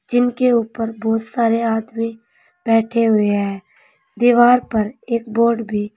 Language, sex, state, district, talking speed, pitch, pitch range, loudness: Hindi, female, Uttar Pradesh, Saharanpur, 130 wpm, 230 Hz, 220-240 Hz, -18 LUFS